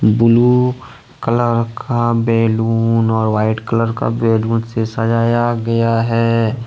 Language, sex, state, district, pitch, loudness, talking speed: Hindi, male, Jharkhand, Ranchi, 115 Hz, -15 LUFS, 115 wpm